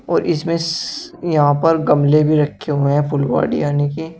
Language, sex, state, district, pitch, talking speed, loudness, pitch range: Hindi, male, Uttar Pradesh, Shamli, 155 Hz, 170 wpm, -17 LUFS, 145-165 Hz